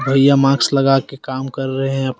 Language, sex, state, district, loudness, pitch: Hindi, male, Jharkhand, Deoghar, -16 LUFS, 135 Hz